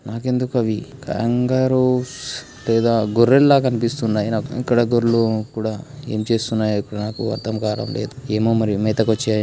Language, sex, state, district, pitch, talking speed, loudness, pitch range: Telugu, male, Andhra Pradesh, Srikakulam, 115 Hz, 120 wpm, -19 LUFS, 110-125 Hz